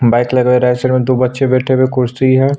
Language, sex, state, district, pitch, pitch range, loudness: Hindi, male, Chhattisgarh, Sukma, 130 Hz, 125-130 Hz, -13 LUFS